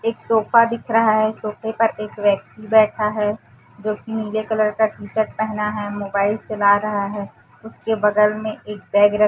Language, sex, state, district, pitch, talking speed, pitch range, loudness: Hindi, female, Chhattisgarh, Raipur, 215 Hz, 195 wpm, 210-220 Hz, -20 LUFS